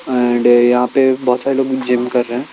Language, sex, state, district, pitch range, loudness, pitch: Hindi, male, Chandigarh, Chandigarh, 120-130 Hz, -14 LUFS, 125 Hz